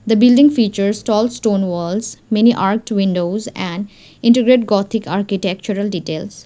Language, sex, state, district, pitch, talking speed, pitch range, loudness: English, female, Sikkim, Gangtok, 205 Hz, 130 wpm, 190-225 Hz, -16 LUFS